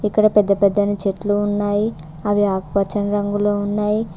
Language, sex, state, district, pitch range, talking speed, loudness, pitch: Telugu, female, Telangana, Mahabubabad, 200-205 Hz, 145 wpm, -18 LUFS, 205 Hz